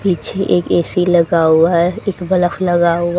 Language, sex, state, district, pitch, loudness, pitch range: Hindi, female, Haryana, Charkhi Dadri, 175 Hz, -14 LUFS, 170-180 Hz